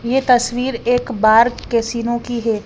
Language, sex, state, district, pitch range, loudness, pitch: Hindi, female, Haryana, Rohtak, 230-245 Hz, -16 LUFS, 235 Hz